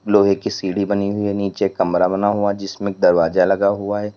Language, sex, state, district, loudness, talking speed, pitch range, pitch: Hindi, male, Uttar Pradesh, Lalitpur, -18 LUFS, 230 wpm, 100-105 Hz, 100 Hz